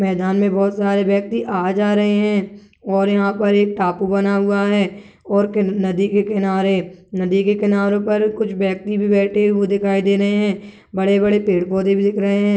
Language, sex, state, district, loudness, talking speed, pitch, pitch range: Hindi, male, Chhattisgarh, Kabirdham, -17 LUFS, 180 wpm, 200 Hz, 195-205 Hz